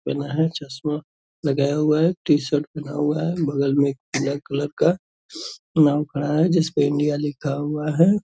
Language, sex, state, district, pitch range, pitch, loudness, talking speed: Hindi, male, Bihar, Purnia, 145-160 Hz, 150 Hz, -22 LUFS, 180 wpm